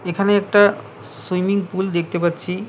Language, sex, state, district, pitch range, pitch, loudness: Bengali, male, West Bengal, Cooch Behar, 175-200 Hz, 190 Hz, -19 LUFS